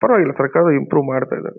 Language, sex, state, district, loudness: Kannada, male, Karnataka, Mysore, -16 LUFS